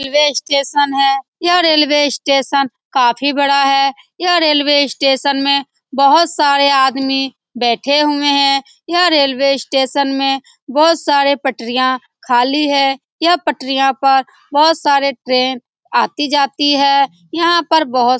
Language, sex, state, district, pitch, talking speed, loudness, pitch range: Hindi, female, Bihar, Saran, 280 Hz, 130 wpm, -14 LUFS, 270-295 Hz